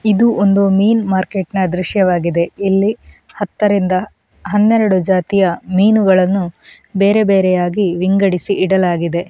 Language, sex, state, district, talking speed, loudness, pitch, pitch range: Kannada, female, Karnataka, Mysore, 90 wpm, -14 LUFS, 195 Hz, 185-205 Hz